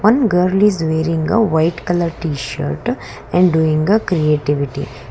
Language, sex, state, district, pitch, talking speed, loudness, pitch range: English, female, Karnataka, Bangalore, 160 Hz, 140 wpm, -16 LUFS, 150-180 Hz